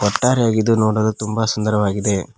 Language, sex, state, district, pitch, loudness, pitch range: Kannada, male, Karnataka, Koppal, 110 Hz, -18 LUFS, 105-110 Hz